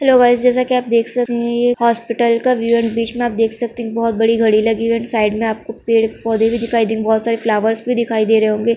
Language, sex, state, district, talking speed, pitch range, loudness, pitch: Hindi, female, Andhra Pradesh, Krishna, 315 wpm, 225-240 Hz, -16 LUFS, 230 Hz